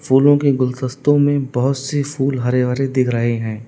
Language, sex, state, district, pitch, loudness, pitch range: Hindi, male, Uttar Pradesh, Lalitpur, 130 Hz, -17 LUFS, 125-140 Hz